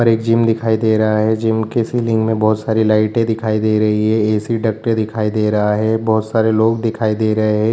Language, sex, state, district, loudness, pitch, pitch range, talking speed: Hindi, male, Bihar, Jamui, -16 LUFS, 110 Hz, 110-115 Hz, 240 wpm